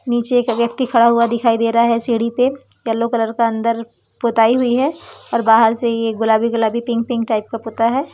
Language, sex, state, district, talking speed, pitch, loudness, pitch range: Hindi, female, Madhya Pradesh, Umaria, 220 wpm, 235 Hz, -16 LUFS, 230-240 Hz